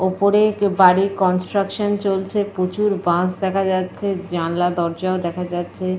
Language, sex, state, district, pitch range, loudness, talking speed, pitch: Bengali, female, Jharkhand, Jamtara, 180-200 Hz, -19 LUFS, 120 wpm, 185 Hz